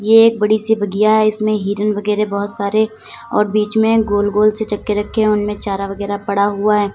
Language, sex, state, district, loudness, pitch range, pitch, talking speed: Hindi, female, Uttar Pradesh, Lalitpur, -16 LUFS, 205-215 Hz, 210 Hz, 225 wpm